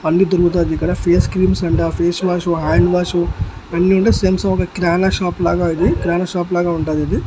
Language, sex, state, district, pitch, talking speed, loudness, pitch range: Telugu, male, Andhra Pradesh, Annamaya, 175 Hz, 180 wpm, -16 LUFS, 170-180 Hz